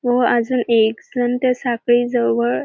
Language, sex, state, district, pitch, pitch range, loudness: Marathi, female, Maharashtra, Dhule, 240 Hz, 230-245 Hz, -18 LUFS